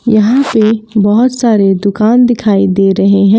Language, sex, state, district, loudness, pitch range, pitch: Hindi, female, Jharkhand, Palamu, -10 LUFS, 200-230 Hz, 215 Hz